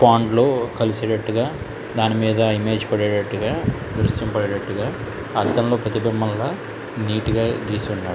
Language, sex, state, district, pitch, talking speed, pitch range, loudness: Telugu, male, Andhra Pradesh, Krishna, 110 Hz, 90 wpm, 105-115 Hz, -21 LUFS